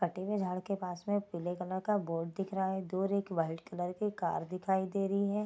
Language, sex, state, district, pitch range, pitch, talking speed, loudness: Hindi, female, Bihar, Darbhanga, 180-200 Hz, 190 Hz, 255 wpm, -35 LUFS